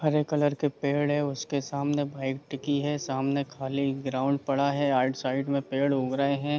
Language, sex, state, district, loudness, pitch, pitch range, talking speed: Hindi, male, Jharkhand, Jamtara, -28 LUFS, 140 Hz, 135-145 Hz, 180 wpm